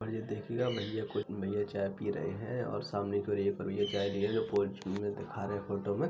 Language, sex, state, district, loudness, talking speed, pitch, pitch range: Hindi, male, Uttar Pradesh, Jalaun, -35 LUFS, 255 wpm, 100 Hz, 100-110 Hz